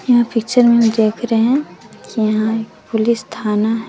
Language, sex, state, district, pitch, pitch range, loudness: Hindi, female, Bihar, West Champaran, 225 Hz, 220-235 Hz, -16 LUFS